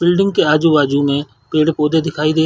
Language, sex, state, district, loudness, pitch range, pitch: Hindi, male, Chhattisgarh, Sarguja, -15 LUFS, 145-160 Hz, 155 Hz